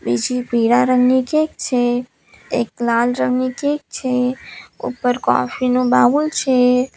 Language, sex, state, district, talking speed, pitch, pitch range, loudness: Gujarati, female, Gujarat, Valsad, 130 wpm, 250 Hz, 245-255 Hz, -17 LUFS